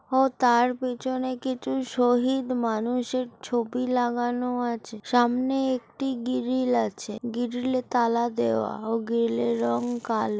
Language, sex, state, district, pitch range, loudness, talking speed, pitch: Bengali, female, West Bengal, Kolkata, 235-255 Hz, -26 LUFS, 125 wpm, 245 Hz